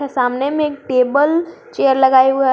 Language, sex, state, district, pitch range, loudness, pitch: Hindi, female, Jharkhand, Garhwa, 260-285 Hz, -15 LUFS, 270 Hz